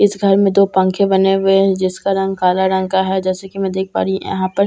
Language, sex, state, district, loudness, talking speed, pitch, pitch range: Hindi, female, Bihar, Katihar, -15 LUFS, 285 wpm, 190 Hz, 190-195 Hz